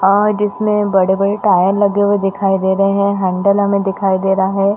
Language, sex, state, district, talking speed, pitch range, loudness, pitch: Hindi, female, Chhattisgarh, Bastar, 225 wpm, 195-205 Hz, -14 LUFS, 200 Hz